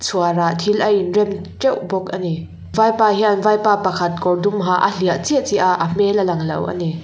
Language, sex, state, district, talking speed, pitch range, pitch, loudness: Mizo, female, Mizoram, Aizawl, 230 wpm, 175-210 Hz, 190 Hz, -17 LUFS